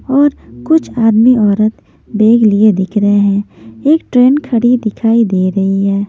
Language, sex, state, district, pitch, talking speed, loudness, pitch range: Hindi, female, Maharashtra, Mumbai Suburban, 220 Hz, 160 wpm, -11 LUFS, 200-250 Hz